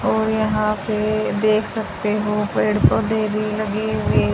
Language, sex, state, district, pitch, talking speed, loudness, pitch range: Hindi, female, Haryana, Jhajjar, 215 Hz, 150 wpm, -20 LUFS, 210-215 Hz